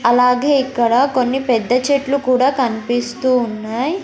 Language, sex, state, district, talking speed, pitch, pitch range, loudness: Telugu, female, Andhra Pradesh, Sri Satya Sai, 120 wpm, 255 Hz, 240-265 Hz, -16 LUFS